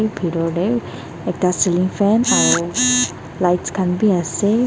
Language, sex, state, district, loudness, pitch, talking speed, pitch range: Nagamese, female, Nagaland, Dimapur, -17 LUFS, 180 Hz, 140 wpm, 165-205 Hz